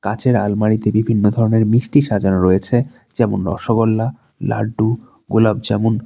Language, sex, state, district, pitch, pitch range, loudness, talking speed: Bengali, male, West Bengal, Alipurduar, 110 Hz, 105-115 Hz, -17 LUFS, 110 wpm